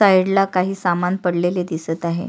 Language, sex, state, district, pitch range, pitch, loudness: Marathi, female, Maharashtra, Sindhudurg, 175-190 Hz, 180 Hz, -19 LUFS